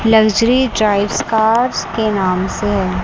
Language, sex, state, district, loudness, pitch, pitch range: Hindi, female, Chandigarh, Chandigarh, -15 LUFS, 215 Hz, 200-225 Hz